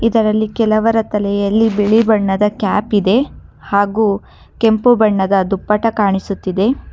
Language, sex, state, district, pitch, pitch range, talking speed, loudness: Kannada, female, Karnataka, Bangalore, 210 Hz, 200-225 Hz, 105 wpm, -15 LUFS